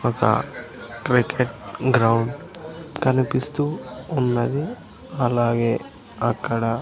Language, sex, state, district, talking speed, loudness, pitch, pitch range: Telugu, male, Andhra Pradesh, Sri Satya Sai, 60 wpm, -22 LUFS, 125 Hz, 115-145 Hz